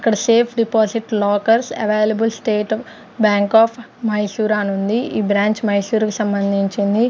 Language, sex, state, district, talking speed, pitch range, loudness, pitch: Telugu, female, Andhra Pradesh, Sri Satya Sai, 125 wpm, 205-225 Hz, -17 LUFS, 215 Hz